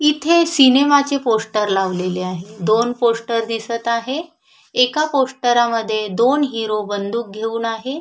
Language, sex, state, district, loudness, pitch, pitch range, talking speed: Marathi, female, Maharashtra, Sindhudurg, -18 LUFS, 235 Hz, 220-275 Hz, 135 wpm